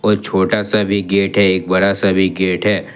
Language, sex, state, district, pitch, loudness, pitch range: Hindi, male, Jharkhand, Ranchi, 100 Hz, -15 LUFS, 95-100 Hz